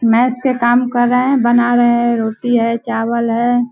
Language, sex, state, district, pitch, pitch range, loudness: Hindi, female, Bihar, Vaishali, 240 Hz, 235-245 Hz, -14 LUFS